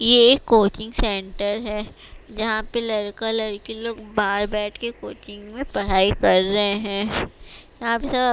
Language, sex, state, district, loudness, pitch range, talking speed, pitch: Hindi, female, Bihar, West Champaran, -21 LUFS, 205-230 Hz, 165 wpm, 215 Hz